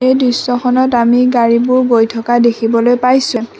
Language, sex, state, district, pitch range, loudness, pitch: Assamese, female, Assam, Sonitpur, 235-255 Hz, -12 LUFS, 245 Hz